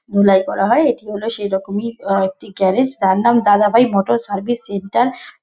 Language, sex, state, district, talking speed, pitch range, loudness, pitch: Bengali, female, West Bengal, Dakshin Dinajpur, 210 wpm, 195-235 Hz, -16 LUFS, 205 Hz